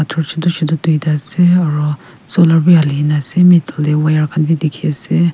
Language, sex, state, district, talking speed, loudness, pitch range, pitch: Nagamese, female, Nagaland, Kohima, 190 wpm, -13 LUFS, 150-170 Hz, 160 Hz